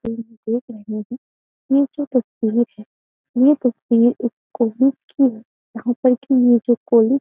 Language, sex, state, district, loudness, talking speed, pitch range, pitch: Hindi, female, Uttar Pradesh, Jyotiba Phule Nagar, -19 LUFS, 185 wpm, 230-260 Hz, 240 Hz